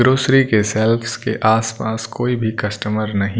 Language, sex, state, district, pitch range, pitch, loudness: Hindi, male, Punjab, Kapurthala, 110-120 Hz, 110 Hz, -18 LUFS